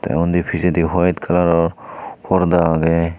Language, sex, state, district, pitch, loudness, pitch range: Chakma, male, Tripura, Unakoti, 85 Hz, -17 LUFS, 85-90 Hz